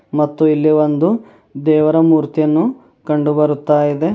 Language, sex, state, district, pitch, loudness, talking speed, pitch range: Kannada, male, Karnataka, Bidar, 155 Hz, -15 LUFS, 115 wpm, 150-160 Hz